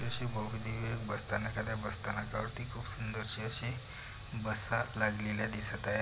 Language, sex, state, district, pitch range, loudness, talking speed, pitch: Marathi, male, Maharashtra, Pune, 105-115 Hz, -38 LUFS, 140 wpm, 110 Hz